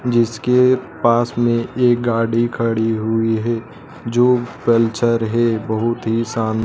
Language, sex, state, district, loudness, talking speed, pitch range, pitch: Hindi, male, Madhya Pradesh, Dhar, -17 LUFS, 125 wpm, 115-120 Hz, 115 Hz